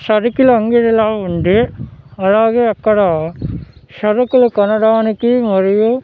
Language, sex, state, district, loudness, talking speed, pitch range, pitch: Telugu, male, Andhra Pradesh, Sri Satya Sai, -13 LUFS, 90 wpm, 205-235 Hz, 220 Hz